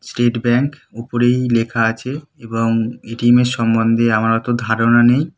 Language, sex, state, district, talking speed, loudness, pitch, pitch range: Bengali, male, West Bengal, Kolkata, 170 wpm, -16 LUFS, 120 Hz, 115-125 Hz